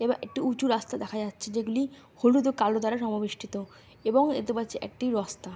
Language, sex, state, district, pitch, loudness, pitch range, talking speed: Bengali, female, West Bengal, Dakshin Dinajpur, 230 Hz, -28 LUFS, 215-260 Hz, 205 wpm